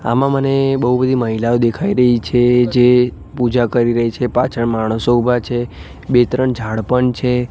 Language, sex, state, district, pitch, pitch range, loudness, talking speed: Gujarati, male, Gujarat, Gandhinagar, 125 Hz, 115-125 Hz, -15 LUFS, 175 wpm